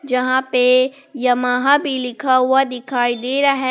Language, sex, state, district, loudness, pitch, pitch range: Hindi, female, Jharkhand, Palamu, -17 LUFS, 255 Hz, 250-270 Hz